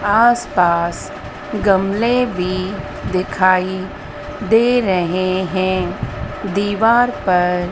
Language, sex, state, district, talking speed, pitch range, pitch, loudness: Hindi, female, Madhya Pradesh, Dhar, 70 wpm, 180-205 Hz, 185 Hz, -17 LUFS